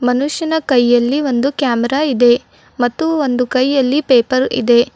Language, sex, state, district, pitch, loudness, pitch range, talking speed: Kannada, female, Karnataka, Bidar, 255 Hz, -14 LUFS, 245-285 Hz, 120 wpm